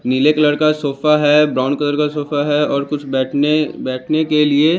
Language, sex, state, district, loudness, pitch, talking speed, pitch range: Hindi, male, Chandigarh, Chandigarh, -16 LUFS, 150 Hz, 200 wpm, 140-150 Hz